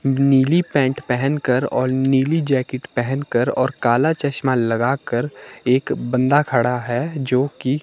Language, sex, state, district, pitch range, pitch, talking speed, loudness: Hindi, male, Himachal Pradesh, Shimla, 125-140 Hz, 130 Hz, 140 wpm, -19 LUFS